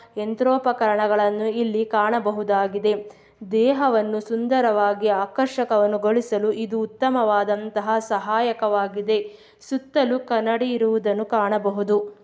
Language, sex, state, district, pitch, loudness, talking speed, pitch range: Kannada, female, Karnataka, Belgaum, 215 Hz, -22 LUFS, 80 wpm, 210-230 Hz